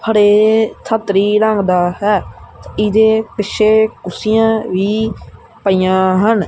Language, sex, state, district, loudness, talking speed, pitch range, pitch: Punjabi, male, Punjab, Kapurthala, -14 LUFS, 100 wpm, 190-220 Hz, 210 Hz